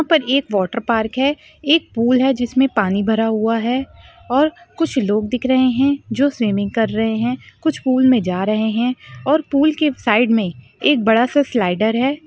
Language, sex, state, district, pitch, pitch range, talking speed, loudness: Hindi, female, Maharashtra, Chandrapur, 245 Hz, 220-280 Hz, 200 wpm, -17 LUFS